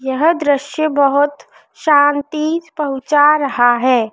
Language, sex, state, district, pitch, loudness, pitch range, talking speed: Hindi, female, Madhya Pradesh, Dhar, 290 Hz, -15 LUFS, 270-305 Hz, 100 wpm